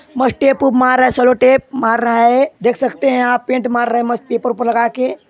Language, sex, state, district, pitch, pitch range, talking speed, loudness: Hindi, male, Chhattisgarh, Sarguja, 250 Hz, 240-260 Hz, 270 wpm, -14 LUFS